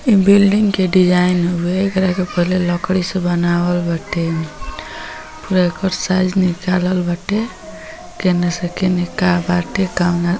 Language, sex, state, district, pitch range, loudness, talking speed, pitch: Hindi, female, Uttar Pradesh, Gorakhpur, 175-185 Hz, -16 LUFS, 140 wpm, 180 Hz